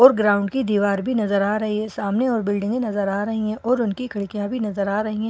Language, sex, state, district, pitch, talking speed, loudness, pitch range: Hindi, female, Bihar, Katihar, 215 Hz, 270 wpm, -22 LUFS, 205-230 Hz